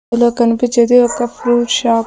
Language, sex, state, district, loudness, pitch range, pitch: Telugu, female, Andhra Pradesh, Sri Satya Sai, -13 LUFS, 235-245 Hz, 240 Hz